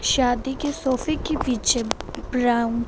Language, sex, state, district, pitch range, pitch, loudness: Hindi, female, Punjab, Fazilka, 240-285 Hz, 255 Hz, -23 LUFS